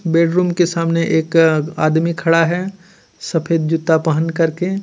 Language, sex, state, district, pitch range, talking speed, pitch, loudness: Hindi, male, Jharkhand, Ranchi, 160-175 Hz, 135 wpm, 165 Hz, -16 LUFS